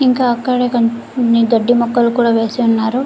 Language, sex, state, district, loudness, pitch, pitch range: Telugu, female, Andhra Pradesh, Guntur, -14 LUFS, 235 Hz, 230-250 Hz